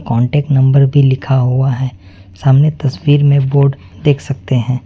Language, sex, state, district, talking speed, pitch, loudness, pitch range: Hindi, male, West Bengal, Alipurduar, 160 wpm, 135 Hz, -13 LUFS, 125-140 Hz